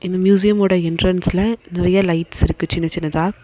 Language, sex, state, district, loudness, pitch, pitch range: Tamil, female, Tamil Nadu, Nilgiris, -17 LUFS, 180 Hz, 170-195 Hz